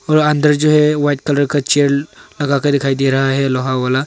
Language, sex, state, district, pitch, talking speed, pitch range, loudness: Hindi, male, Arunachal Pradesh, Longding, 145 Hz, 235 wpm, 135-150 Hz, -15 LUFS